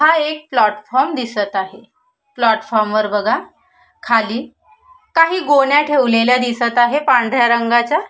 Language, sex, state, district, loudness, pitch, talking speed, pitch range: Marathi, female, Maharashtra, Solapur, -15 LUFS, 245 Hz, 120 wpm, 225-290 Hz